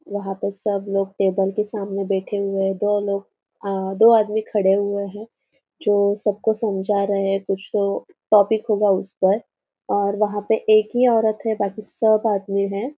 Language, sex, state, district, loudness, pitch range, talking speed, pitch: Hindi, female, Maharashtra, Aurangabad, -21 LUFS, 195-215 Hz, 190 wpm, 205 Hz